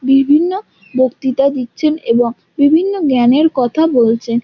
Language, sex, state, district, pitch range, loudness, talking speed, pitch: Bengali, female, West Bengal, Jhargram, 240-305 Hz, -14 LUFS, 110 wpm, 270 Hz